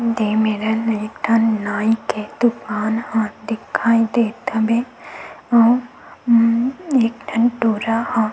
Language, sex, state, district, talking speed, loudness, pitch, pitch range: Chhattisgarhi, female, Chhattisgarh, Sukma, 130 wpm, -18 LUFS, 225 Hz, 220-235 Hz